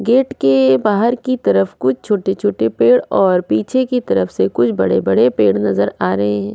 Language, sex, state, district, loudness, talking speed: Hindi, female, Goa, North and South Goa, -15 LUFS, 185 wpm